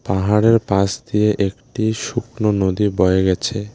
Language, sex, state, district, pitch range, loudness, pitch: Bengali, male, West Bengal, Alipurduar, 95-110 Hz, -18 LUFS, 105 Hz